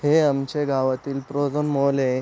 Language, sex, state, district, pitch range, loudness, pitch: Marathi, male, Maharashtra, Aurangabad, 135-145 Hz, -23 LUFS, 140 Hz